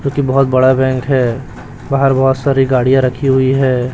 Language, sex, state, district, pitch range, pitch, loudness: Hindi, male, Chhattisgarh, Raipur, 130-135 Hz, 130 Hz, -13 LUFS